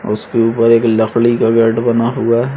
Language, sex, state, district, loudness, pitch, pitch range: Hindi, male, Uttarakhand, Uttarkashi, -13 LUFS, 115 Hz, 115-120 Hz